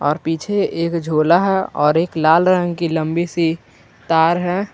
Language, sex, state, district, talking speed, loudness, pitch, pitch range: Hindi, male, Jharkhand, Garhwa, 175 wpm, -17 LUFS, 165 Hz, 160-175 Hz